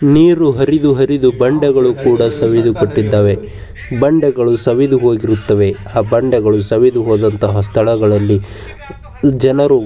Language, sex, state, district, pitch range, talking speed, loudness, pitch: Kannada, male, Karnataka, Bijapur, 105-135 Hz, 85 wpm, -12 LUFS, 115 Hz